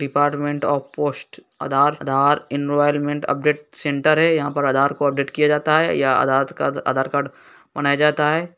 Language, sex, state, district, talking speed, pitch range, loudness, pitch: Hindi, male, Uttar Pradesh, Hamirpur, 175 wpm, 140-150 Hz, -19 LUFS, 145 Hz